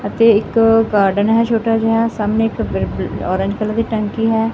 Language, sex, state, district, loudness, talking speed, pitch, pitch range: Punjabi, female, Punjab, Fazilka, -16 LUFS, 170 wpm, 225 Hz, 200-225 Hz